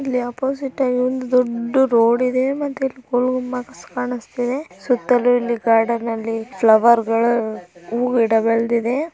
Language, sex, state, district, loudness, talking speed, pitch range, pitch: Kannada, female, Karnataka, Bijapur, -19 LUFS, 100 wpm, 230-255 Hz, 245 Hz